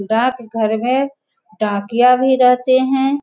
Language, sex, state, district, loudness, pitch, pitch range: Hindi, female, Bihar, Sitamarhi, -16 LUFS, 250 Hz, 225-265 Hz